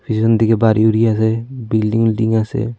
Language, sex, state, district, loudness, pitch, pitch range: Bengali, female, Tripura, Unakoti, -15 LUFS, 110 Hz, 110-115 Hz